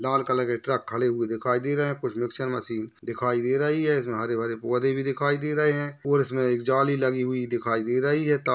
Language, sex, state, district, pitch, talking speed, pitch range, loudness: Hindi, male, Maharashtra, Nagpur, 130 Hz, 260 wpm, 120-140 Hz, -25 LUFS